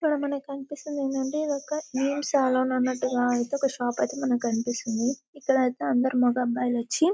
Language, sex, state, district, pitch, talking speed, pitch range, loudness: Telugu, female, Telangana, Karimnagar, 265 Hz, 185 wpm, 245-280 Hz, -26 LUFS